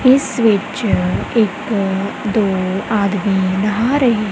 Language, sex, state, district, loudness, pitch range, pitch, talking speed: Punjabi, female, Punjab, Kapurthala, -16 LUFS, 195-225 Hz, 205 Hz, 95 wpm